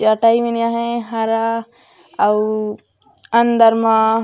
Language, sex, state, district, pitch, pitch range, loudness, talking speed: Chhattisgarhi, female, Chhattisgarh, Raigarh, 230 Hz, 225-235 Hz, -16 LUFS, 100 wpm